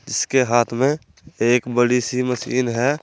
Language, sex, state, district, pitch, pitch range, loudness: Hindi, male, Uttar Pradesh, Saharanpur, 125 Hz, 120-130 Hz, -19 LUFS